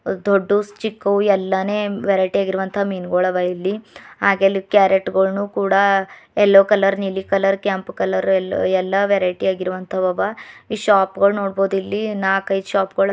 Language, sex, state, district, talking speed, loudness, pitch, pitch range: Kannada, female, Karnataka, Bidar, 145 wpm, -18 LUFS, 195 Hz, 190-200 Hz